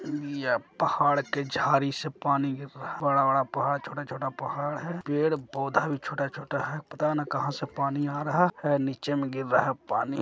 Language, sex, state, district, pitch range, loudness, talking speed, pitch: Hindi, male, Bihar, Jahanabad, 135-150 Hz, -28 LUFS, 190 wpm, 145 Hz